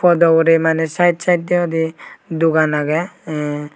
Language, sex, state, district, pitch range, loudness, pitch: Chakma, male, Tripura, Dhalai, 155-175 Hz, -16 LUFS, 165 Hz